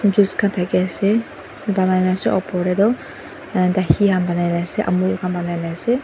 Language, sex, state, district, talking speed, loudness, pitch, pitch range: Nagamese, female, Nagaland, Dimapur, 150 wpm, -19 LUFS, 185 Hz, 180-205 Hz